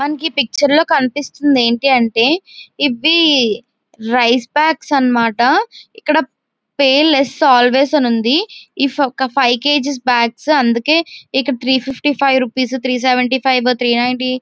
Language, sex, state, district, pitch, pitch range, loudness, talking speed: Telugu, female, Andhra Pradesh, Visakhapatnam, 265 Hz, 245-295 Hz, -14 LUFS, 140 wpm